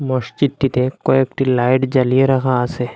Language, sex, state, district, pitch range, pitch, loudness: Bengali, male, Assam, Hailakandi, 125-135 Hz, 130 Hz, -16 LUFS